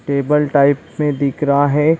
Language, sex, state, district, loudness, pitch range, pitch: Hindi, male, Chhattisgarh, Bilaspur, -16 LUFS, 140-150 Hz, 145 Hz